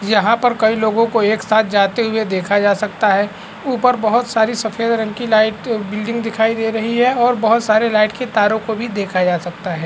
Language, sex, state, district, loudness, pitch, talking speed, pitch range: Hindi, male, Bihar, Lakhisarai, -16 LUFS, 220 Hz, 225 wpm, 205-230 Hz